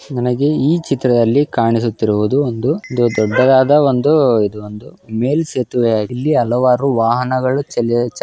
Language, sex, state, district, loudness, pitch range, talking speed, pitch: Kannada, male, Karnataka, Belgaum, -15 LUFS, 115-140 Hz, 130 wpm, 125 Hz